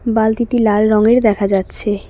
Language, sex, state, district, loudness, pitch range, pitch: Bengali, female, West Bengal, Cooch Behar, -14 LUFS, 205-230 Hz, 215 Hz